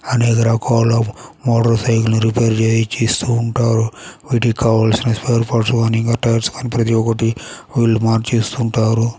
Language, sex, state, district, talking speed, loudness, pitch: Telugu, male, Andhra Pradesh, Chittoor, 125 wpm, -16 LUFS, 115 Hz